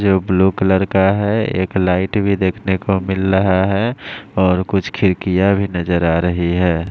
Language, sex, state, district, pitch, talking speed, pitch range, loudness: Hindi, male, Maharashtra, Mumbai Suburban, 95 Hz, 180 wpm, 90-100 Hz, -16 LUFS